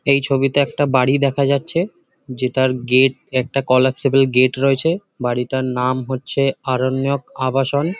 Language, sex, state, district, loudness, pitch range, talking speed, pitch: Bengali, male, West Bengal, Jhargram, -18 LUFS, 130-140 Hz, 135 wpm, 135 Hz